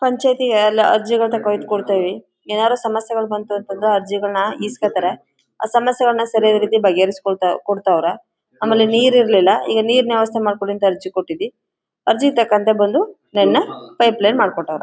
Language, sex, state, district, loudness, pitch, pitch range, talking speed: Kannada, female, Karnataka, Chamarajanagar, -17 LUFS, 215 Hz, 200-230 Hz, 145 wpm